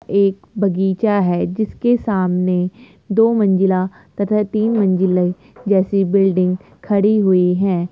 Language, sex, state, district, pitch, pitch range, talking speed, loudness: Hindi, female, Uttar Pradesh, Jyotiba Phule Nagar, 195 Hz, 185-210 Hz, 115 wpm, -17 LUFS